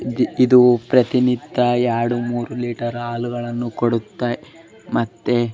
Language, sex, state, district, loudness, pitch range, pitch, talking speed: Kannada, male, Karnataka, Bellary, -19 LUFS, 120-125 Hz, 120 Hz, 95 wpm